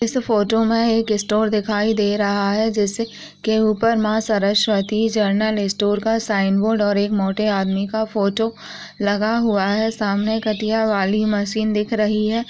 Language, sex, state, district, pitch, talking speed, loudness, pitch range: Hindi, female, Bihar, Begusarai, 215 Hz, 170 wpm, -19 LUFS, 205-220 Hz